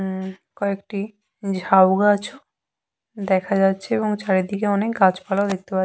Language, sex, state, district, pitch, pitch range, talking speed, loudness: Bengali, female, West Bengal, Jhargram, 200 Hz, 190-205 Hz, 125 wpm, -21 LUFS